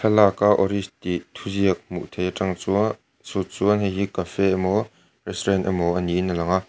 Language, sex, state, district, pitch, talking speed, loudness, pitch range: Mizo, male, Mizoram, Aizawl, 95 Hz, 205 wpm, -23 LUFS, 90-100 Hz